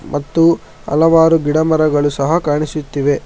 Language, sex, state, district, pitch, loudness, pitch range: Kannada, male, Karnataka, Bangalore, 155 Hz, -14 LUFS, 145-165 Hz